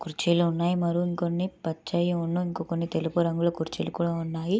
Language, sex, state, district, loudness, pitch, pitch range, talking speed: Telugu, female, Andhra Pradesh, Srikakulam, -27 LUFS, 170 Hz, 165-175 Hz, 130 wpm